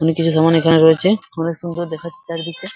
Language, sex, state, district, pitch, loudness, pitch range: Bengali, male, West Bengal, Purulia, 165 Hz, -16 LUFS, 165-175 Hz